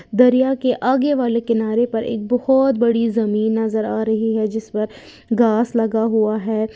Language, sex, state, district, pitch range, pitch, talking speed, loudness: Hindi, female, Uttar Pradesh, Lalitpur, 220-245 Hz, 225 Hz, 180 wpm, -18 LUFS